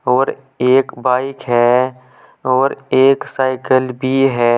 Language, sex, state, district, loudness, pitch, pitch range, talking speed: Hindi, male, Uttar Pradesh, Saharanpur, -15 LUFS, 130 Hz, 125-130 Hz, 120 wpm